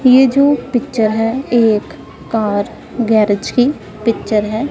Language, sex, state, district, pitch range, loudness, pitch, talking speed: Hindi, female, Punjab, Pathankot, 215-260 Hz, -15 LUFS, 230 Hz, 125 wpm